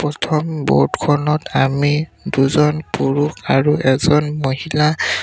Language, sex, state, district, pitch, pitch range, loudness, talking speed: Assamese, male, Assam, Sonitpur, 150 Hz, 140-150 Hz, -17 LUFS, 105 wpm